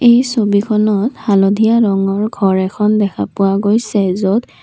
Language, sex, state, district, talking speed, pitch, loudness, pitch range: Assamese, female, Assam, Kamrup Metropolitan, 130 wpm, 205 Hz, -14 LUFS, 195-220 Hz